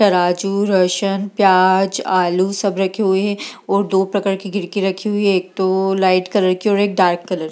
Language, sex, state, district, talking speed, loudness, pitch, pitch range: Hindi, female, Bihar, Gaya, 185 wpm, -17 LUFS, 195 Hz, 185-200 Hz